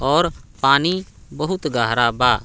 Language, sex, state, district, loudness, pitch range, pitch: Bhojpuri, male, Bihar, Muzaffarpur, -19 LUFS, 125-170 Hz, 140 Hz